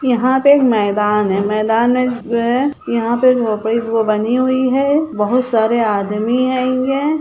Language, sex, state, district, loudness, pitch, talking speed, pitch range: Hindi, female, Chhattisgarh, Bilaspur, -15 LUFS, 240 Hz, 150 wpm, 220-255 Hz